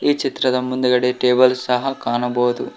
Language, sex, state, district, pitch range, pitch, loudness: Kannada, male, Karnataka, Koppal, 125-130 Hz, 125 Hz, -18 LUFS